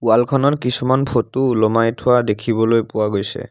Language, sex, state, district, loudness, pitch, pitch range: Assamese, male, Assam, Sonitpur, -17 LUFS, 120 Hz, 110-125 Hz